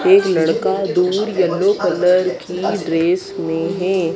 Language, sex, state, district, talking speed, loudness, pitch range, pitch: Hindi, female, Madhya Pradesh, Dhar, 130 wpm, -17 LUFS, 170-195 Hz, 180 Hz